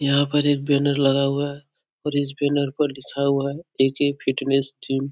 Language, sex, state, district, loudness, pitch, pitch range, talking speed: Hindi, male, Uttar Pradesh, Etah, -22 LUFS, 140 Hz, 135-145 Hz, 225 wpm